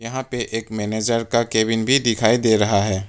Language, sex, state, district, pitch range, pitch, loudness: Hindi, male, Arunachal Pradesh, Papum Pare, 110-115 Hz, 115 Hz, -19 LUFS